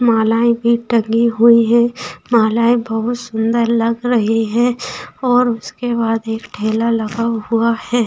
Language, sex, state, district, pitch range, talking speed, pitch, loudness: Hindi, female, Bihar, Lakhisarai, 225-240 Hz, 140 wpm, 230 Hz, -16 LUFS